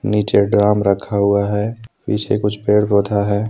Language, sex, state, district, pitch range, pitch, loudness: Hindi, male, Jharkhand, Deoghar, 100-105 Hz, 105 Hz, -17 LUFS